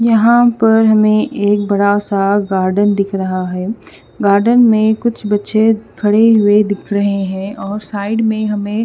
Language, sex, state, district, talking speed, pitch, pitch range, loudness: Hindi, female, Haryana, Rohtak, 165 wpm, 205 Hz, 200-220 Hz, -13 LUFS